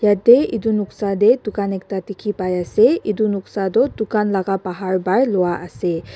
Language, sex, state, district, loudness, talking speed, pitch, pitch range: Nagamese, female, Nagaland, Dimapur, -18 LUFS, 155 wpm, 200 Hz, 190-210 Hz